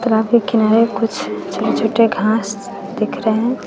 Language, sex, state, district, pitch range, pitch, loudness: Hindi, female, Bihar, West Champaran, 215-235 Hz, 225 Hz, -17 LUFS